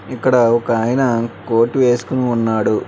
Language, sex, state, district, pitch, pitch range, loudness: Telugu, male, Telangana, Hyderabad, 120 Hz, 115-125 Hz, -16 LUFS